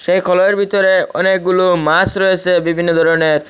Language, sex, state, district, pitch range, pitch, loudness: Bengali, male, Assam, Hailakandi, 170-190 Hz, 180 Hz, -13 LUFS